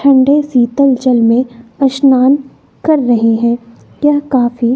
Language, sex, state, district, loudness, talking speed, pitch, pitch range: Hindi, female, Bihar, West Champaran, -12 LUFS, 125 wpm, 255 Hz, 240-280 Hz